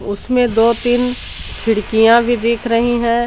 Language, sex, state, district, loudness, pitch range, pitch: Hindi, female, Jharkhand, Garhwa, -15 LUFS, 230-240 Hz, 235 Hz